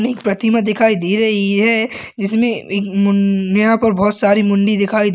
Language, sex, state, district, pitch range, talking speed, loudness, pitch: Hindi, male, Chhattisgarh, Balrampur, 200-225 Hz, 210 wpm, -14 LUFS, 210 Hz